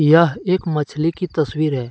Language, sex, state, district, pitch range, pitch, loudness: Hindi, male, Jharkhand, Deoghar, 150-170 Hz, 155 Hz, -19 LUFS